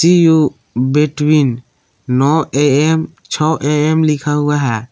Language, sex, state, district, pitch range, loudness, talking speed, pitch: Hindi, male, Jharkhand, Palamu, 135-155 Hz, -14 LUFS, 120 wpm, 150 Hz